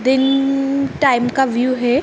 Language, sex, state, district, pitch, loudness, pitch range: Hindi, female, Uttar Pradesh, Ghazipur, 265 Hz, -16 LUFS, 250-275 Hz